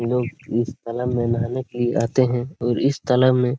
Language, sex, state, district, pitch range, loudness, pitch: Hindi, male, Jharkhand, Sahebganj, 120-130 Hz, -22 LUFS, 125 Hz